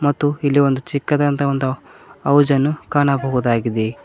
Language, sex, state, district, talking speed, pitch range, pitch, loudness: Kannada, male, Karnataka, Koppal, 120 wpm, 130-145 Hz, 140 Hz, -18 LUFS